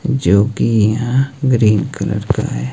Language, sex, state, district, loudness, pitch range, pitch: Hindi, male, Himachal Pradesh, Shimla, -15 LUFS, 105-135 Hz, 115 Hz